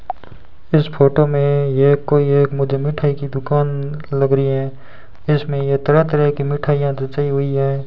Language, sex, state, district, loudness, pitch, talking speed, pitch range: Hindi, male, Rajasthan, Bikaner, -17 LUFS, 140 Hz, 160 wpm, 135-145 Hz